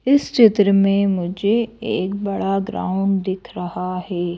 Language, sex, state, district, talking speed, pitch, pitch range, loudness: Hindi, female, Madhya Pradesh, Bhopal, 135 wpm, 195 Hz, 185-210 Hz, -19 LUFS